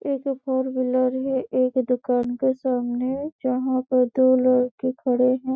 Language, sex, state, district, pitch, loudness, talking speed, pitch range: Hindi, female, Chhattisgarh, Bastar, 255 Hz, -22 LUFS, 150 wpm, 255-260 Hz